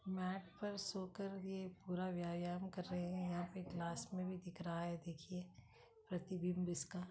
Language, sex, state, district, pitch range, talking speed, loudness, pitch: Kumaoni, female, Uttarakhand, Uttarkashi, 175-190 Hz, 185 wpm, -46 LUFS, 180 Hz